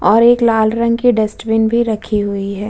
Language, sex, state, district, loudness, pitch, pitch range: Hindi, female, Bihar, Vaishali, -14 LUFS, 220 Hz, 210-235 Hz